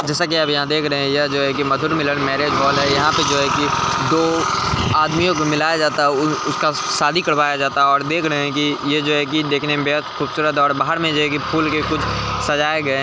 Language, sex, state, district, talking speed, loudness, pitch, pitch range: Hindi, male, Bihar, Gaya, 265 wpm, -17 LUFS, 150 Hz, 140-155 Hz